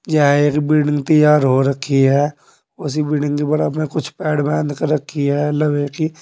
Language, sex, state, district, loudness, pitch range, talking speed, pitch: Hindi, male, Uttar Pradesh, Saharanpur, -17 LUFS, 145-155 Hz, 195 wpm, 150 Hz